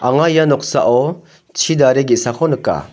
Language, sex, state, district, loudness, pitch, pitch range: Garo, male, Meghalaya, North Garo Hills, -14 LUFS, 150 Hz, 130-165 Hz